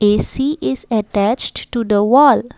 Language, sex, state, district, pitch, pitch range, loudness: English, female, Assam, Kamrup Metropolitan, 220 Hz, 205-260 Hz, -15 LUFS